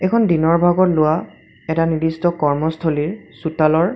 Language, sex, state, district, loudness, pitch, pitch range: Assamese, male, Assam, Sonitpur, -18 LUFS, 160 Hz, 160-175 Hz